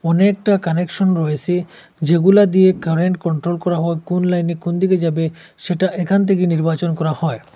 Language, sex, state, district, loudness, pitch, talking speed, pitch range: Bengali, male, Assam, Hailakandi, -17 LUFS, 175 Hz, 160 wpm, 165-185 Hz